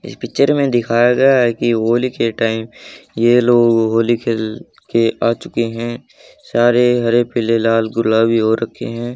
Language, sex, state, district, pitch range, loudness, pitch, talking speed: Hindi, male, Haryana, Charkhi Dadri, 115-120 Hz, -15 LUFS, 115 Hz, 170 wpm